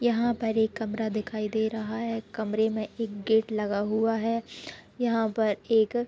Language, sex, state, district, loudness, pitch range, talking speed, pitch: Hindi, female, Chhattisgarh, Bilaspur, -28 LUFS, 215-230 Hz, 175 wpm, 220 Hz